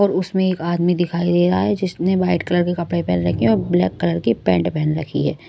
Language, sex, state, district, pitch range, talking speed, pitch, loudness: Hindi, female, Maharashtra, Mumbai Suburban, 115-185 Hz, 260 wpm, 175 Hz, -19 LUFS